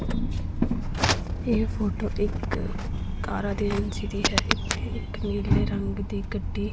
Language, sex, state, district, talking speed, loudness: Punjabi, female, Punjab, Pathankot, 125 wpm, -27 LUFS